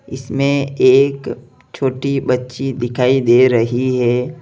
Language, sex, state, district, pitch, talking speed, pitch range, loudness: Hindi, male, Uttar Pradesh, Lalitpur, 130 Hz, 110 wpm, 125-135 Hz, -15 LUFS